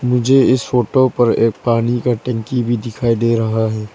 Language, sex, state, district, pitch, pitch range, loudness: Hindi, female, Arunachal Pradesh, Lower Dibang Valley, 120 Hz, 115-125 Hz, -16 LUFS